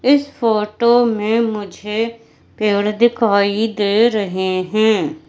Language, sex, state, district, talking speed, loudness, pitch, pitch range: Hindi, female, Madhya Pradesh, Katni, 100 wpm, -17 LUFS, 215 Hz, 205-230 Hz